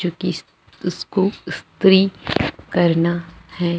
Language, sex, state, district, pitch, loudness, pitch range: Hindi, female, Chhattisgarh, Jashpur, 180 Hz, -19 LUFS, 170-190 Hz